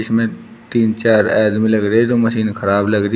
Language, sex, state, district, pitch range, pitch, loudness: Hindi, male, Uttar Pradesh, Shamli, 105-115 Hz, 110 Hz, -15 LUFS